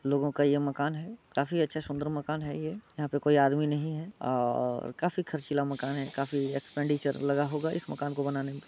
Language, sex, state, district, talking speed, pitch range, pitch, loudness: Hindi, male, Bihar, Muzaffarpur, 220 wpm, 140-155 Hz, 145 Hz, -31 LUFS